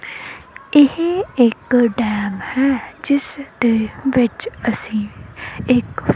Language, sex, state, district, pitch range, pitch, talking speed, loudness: Punjabi, female, Punjab, Kapurthala, 230-285 Hz, 250 Hz, 95 wpm, -17 LUFS